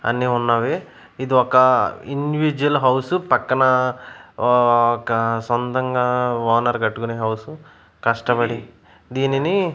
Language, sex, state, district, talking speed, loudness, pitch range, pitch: Telugu, male, Andhra Pradesh, Manyam, 100 wpm, -19 LUFS, 120-130 Hz, 125 Hz